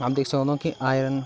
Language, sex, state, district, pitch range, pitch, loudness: Garhwali, male, Uttarakhand, Tehri Garhwal, 135-140 Hz, 135 Hz, -24 LUFS